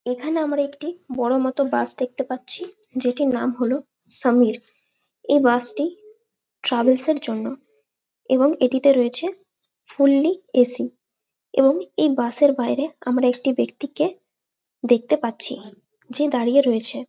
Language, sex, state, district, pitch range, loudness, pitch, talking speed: Bengali, female, West Bengal, Malda, 245-290 Hz, -21 LUFS, 265 Hz, 125 wpm